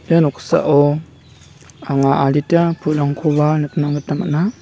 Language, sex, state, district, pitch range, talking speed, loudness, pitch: Garo, male, Meghalaya, West Garo Hills, 145-160 Hz, 105 wpm, -16 LUFS, 150 Hz